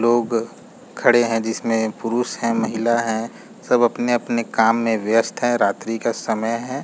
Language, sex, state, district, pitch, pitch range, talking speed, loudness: Hindi, male, Jharkhand, Jamtara, 115 Hz, 115-120 Hz, 150 wpm, -20 LUFS